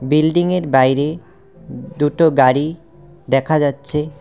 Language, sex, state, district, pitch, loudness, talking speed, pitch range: Bengali, male, West Bengal, Cooch Behar, 150 Hz, -16 LUFS, 100 wpm, 140-165 Hz